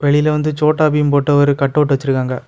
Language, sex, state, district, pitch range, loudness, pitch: Tamil, male, Tamil Nadu, Kanyakumari, 140-150 Hz, -15 LUFS, 145 Hz